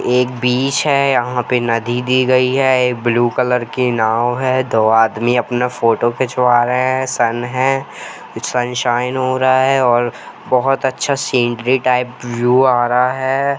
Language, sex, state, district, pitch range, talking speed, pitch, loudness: Hindi, male, Jharkhand, Jamtara, 120-130 Hz, 160 wpm, 125 Hz, -15 LUFS